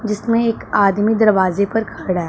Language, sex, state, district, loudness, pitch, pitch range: Hindi, female, Punjab, Pathankot, -16 LUFS, 210 Hz, 195-225 Hz